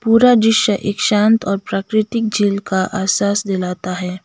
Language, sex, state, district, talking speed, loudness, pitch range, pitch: Hindi, female, Sikkim, Gangtok, 155 wpm, -16 LUFS, 190-220 Hz, 205 Hz